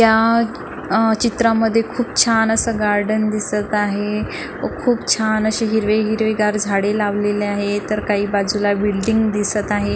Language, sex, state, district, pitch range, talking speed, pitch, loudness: Marathi, female, Maharashtra, Nagpur, 205-225 Hz, 140 wpm, 215 Hz, -18 LUFS